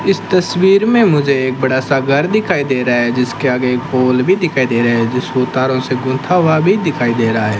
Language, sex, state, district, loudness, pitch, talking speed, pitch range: Hindi, male, Rajasthan, Bikaner, -14 LUFS, 130 Hz, 245 wpm, 125-170 Hz